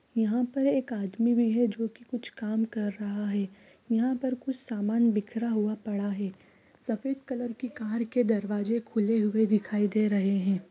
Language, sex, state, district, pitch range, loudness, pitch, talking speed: Hindi, female, Bihar, East Champaran, 210-240 Hz, -29 LUFS, 225 Hz, 185 wpm